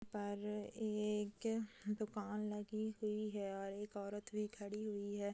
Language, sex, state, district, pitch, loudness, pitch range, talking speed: Hindi, female, Bihar, Purnia, 210 Hz, -44 LUFS, 205-215 Hz, 170 wpm